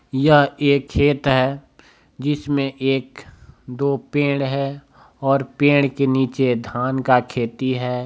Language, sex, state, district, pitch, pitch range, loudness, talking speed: Hindi, male, Bihar, Bhagalpur, 135 Hz, 130-140 Hz, -19 LUFS, 125 wpm